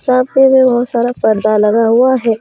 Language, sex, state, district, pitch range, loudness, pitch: Hindi, female, Jharkhand, Deoghar, 225-255 Hz, -11 LUFS, 240 Hz